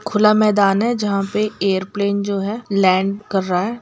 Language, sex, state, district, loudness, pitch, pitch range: Hindi, male, Bihar, Sitamarhi, -18 LUFS, 200 Hz, 195-210 Hz